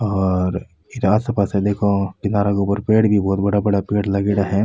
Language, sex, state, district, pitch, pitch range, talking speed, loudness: Rajasthani, male, Rajasthan, Nagaur, 100 Hz, 100-105 Hz, 180 wpm, -18 LUFS